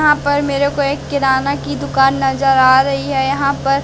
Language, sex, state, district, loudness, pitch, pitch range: Hindi, female, Madhya Pradesh, Katni, -15 LUFS, 270 Hz, 260-280 Hz